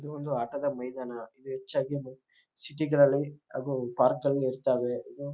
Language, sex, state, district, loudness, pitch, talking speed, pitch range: Kannada, male, Karnataka, Chamarajanagar, -30 LUFS, 135 Hz, 135 wpm, 130-145 Hz